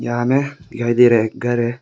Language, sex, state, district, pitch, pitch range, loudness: Hindi, male, Arunachal Pradesh, Longding, 120 Hz, 120-125 Hz, -17 LUFS